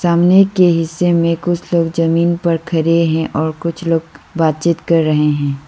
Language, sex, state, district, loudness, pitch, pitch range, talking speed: Hindi, female, Arunachal Pradesh, Lower Dibang Valley, -15 LUFS, 165 Hz, 160-170 Hz, 180 wpm